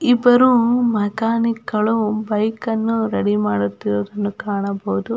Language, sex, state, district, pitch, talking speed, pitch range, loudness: Kannada, female, Karnataka, Belgaum, 215 Hz, 80 wpm, 200-230 Hz, -18 LUFS